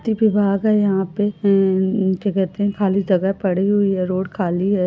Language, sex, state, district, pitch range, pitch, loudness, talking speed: Hindi, female, Uttar Pradesh, Etah, 190-205 Hz, 195 Hz, -18 LUFS, 125 wpm